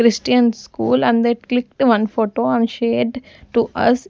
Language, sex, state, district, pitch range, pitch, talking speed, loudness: English, female, Punjab, Kapurthala, 230-240 Hz, 235 Hz, 160 wpm, -18 LUFS